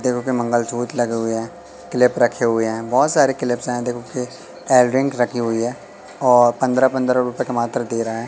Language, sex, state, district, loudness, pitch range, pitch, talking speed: Hindi, male, Madhya Pradesh, Katni, -19 LUFS, 120-125 Hz, 120 Hz, 210 wpm